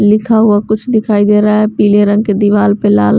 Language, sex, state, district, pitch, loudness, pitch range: Hindi, female, Bihar, West Champaran, 210 Hz, -10 LUFS, 205-215 Hz